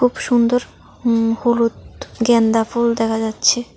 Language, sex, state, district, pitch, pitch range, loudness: Bengali, female, Tripura, South Tripura, 235 Hz, 225-240 Hz, -17 LUFS